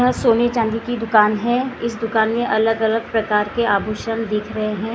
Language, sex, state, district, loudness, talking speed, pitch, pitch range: Hindi, female, Maharashtra, Gondia, -19 LUFS, 205 wpm, 225 Hz, 215-235 Hz